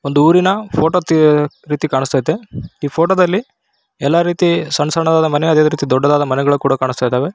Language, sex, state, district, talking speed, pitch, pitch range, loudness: Kannada, male, Karnataka, Raichur, 180 wpm, 155 Hz, 140-170 Hz, -14 LUFS